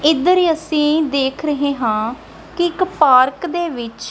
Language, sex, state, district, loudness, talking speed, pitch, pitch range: Punjabi, female, Punjab, Kapurthala, -17 LUFS, 160 wpm, 300 Hz, 260-345 Hz